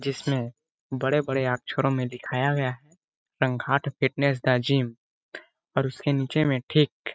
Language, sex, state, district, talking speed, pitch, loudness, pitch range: Hindi, male, Chhattisgarh, Balrampur, 135 wpm, 135 Hz, -26 LUFS, 130-145 Hz